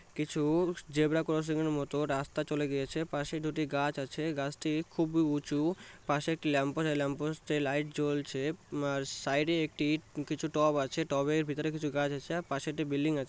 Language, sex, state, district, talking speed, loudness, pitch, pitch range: Bengali, male, West Bengal, North 24 Parganas, 170 wpm, -33 LUFS, 150 Hz, 145-155 Hz